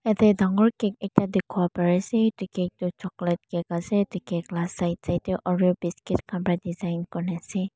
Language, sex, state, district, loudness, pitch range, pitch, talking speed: Nagamese, female, Mizoram, Aizawl, -26 LUFS, 175-195 Hz, 180 Hz, 200 wpm